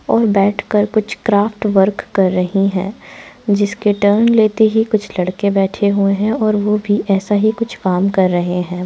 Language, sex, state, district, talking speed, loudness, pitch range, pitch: Hindi, female, Bihar, Araria, 185 wpm, -15 LUFS, 195-215 Hz, 205 Hz